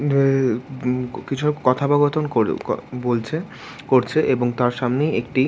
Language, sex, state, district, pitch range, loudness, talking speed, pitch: Bengali, male, West Bengal, Jhargram, 125-145 Hz, -21 LUFS, 100 wpm, 130 Hz